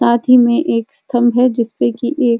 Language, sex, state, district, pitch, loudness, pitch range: Hindi, female, Uttarakhand, Uttarkashi, 240 Hz, -14 LUFS, 235-250 Hz